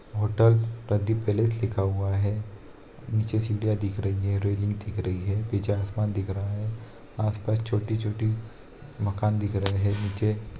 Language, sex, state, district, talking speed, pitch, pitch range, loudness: Hindi, male, Bihar, Saharsa, 160 wpm, 105 Hz, 100-110 Hz, -27 LUFS